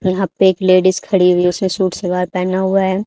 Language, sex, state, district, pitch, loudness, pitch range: Hindi, female, Haryana, Charkhi Dadri, 185 Hz, -15 LUFS, 180-190 Hz